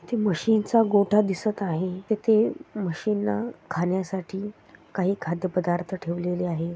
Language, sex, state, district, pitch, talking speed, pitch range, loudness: Marathi, female, Maharashtra, Sindhudurg, 195 Hz, 125 wpm, 180-215 Hz, -25 LUFS